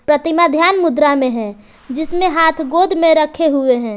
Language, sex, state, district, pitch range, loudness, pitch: Hindi, female, Jharkhand, Palamu, 260-330 Hz, -14 LUFS, 310 Hz